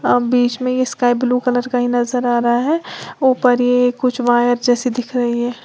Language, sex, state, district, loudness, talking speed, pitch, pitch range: Hindi, female, Uttar Pradesh, Lalitpur, -16 LUFS, 210 wpm, 245 Hz, 245-250 Hz